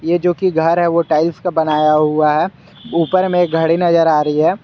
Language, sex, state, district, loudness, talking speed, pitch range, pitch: Hindi, male, Jharkhand, Garhwa, -15 LUFS, 235 wpm, 155-175 Hz, 165 Hz